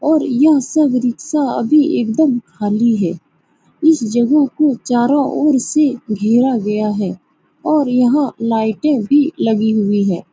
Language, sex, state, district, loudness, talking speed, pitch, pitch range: Hindi, female, Bihar, Saran, -15 LUFS, 140 wpm, 245 Hz, 220-295 Hz